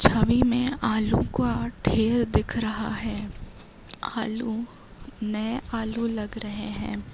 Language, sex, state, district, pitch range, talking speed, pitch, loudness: Hindi, female, Bihar, East Champaran, 210-230 Hz, 120 wpm, 220 Hz, -27 LUFS